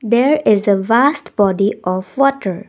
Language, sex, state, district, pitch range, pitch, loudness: English, female, Assam, Kamrup Metropolitan, 195-265 Hz, 215 Hz, -15 LUFS